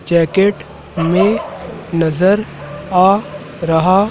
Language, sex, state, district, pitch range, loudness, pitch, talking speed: Hindi, male, Madhya Pradesh, Dhar, 160-195 Hz, -15 LUFS, 175 Hz, 75 wpm